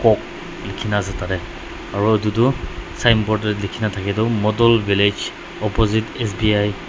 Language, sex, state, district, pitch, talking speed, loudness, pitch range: Nagamese, male, Nagaland, Dimapur, 105 Hz, 150 wpm, -19 LUFS, 100-110 Hz